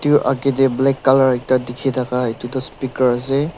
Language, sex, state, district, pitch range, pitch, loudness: Nagamese, male, Nagaland, Dimapur, 125-135 Hz, 130 Hz, -18 LUFS